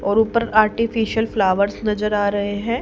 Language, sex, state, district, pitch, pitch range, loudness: Hindi, female, Haryana, Charkhi Dadri, 215 Hz, 205-225 Hz, -19 LUFS